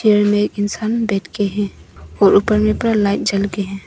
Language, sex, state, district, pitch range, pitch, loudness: Hindi, female, Arunachal Pradesh, Papum Pare, 195-215 Hz, 205 Hz, -17 LUFS